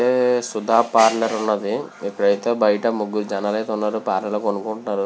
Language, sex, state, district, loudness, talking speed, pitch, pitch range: Telugu, male, Andhra Pradesh, Visakhapatnam, -20 LUFS, 155 wpm, 110 Hz, 105-115 Hz